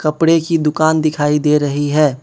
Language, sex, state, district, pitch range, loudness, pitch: Hindi, male, Manipur, Imphal West, 145-160 Hz, -14 LUFS, 150 Hz